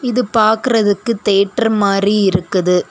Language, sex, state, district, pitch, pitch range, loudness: Tamil, female, Tamil Nadu, Kanyakumari, 210 Hz, 195-230 Hz, -14 LUFS